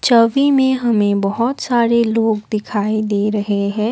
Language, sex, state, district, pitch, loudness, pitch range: Hindi, female, Assam, Kamrup Metropolitan, 220 Hz, -16 LUFS, 205-235 Hz